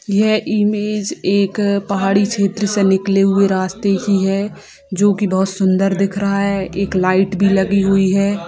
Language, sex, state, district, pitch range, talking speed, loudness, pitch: Hindi, female, Bihar, Sitamarhi, 195-200 Hz, 170 wpm, -16 LUFS, 195 Hz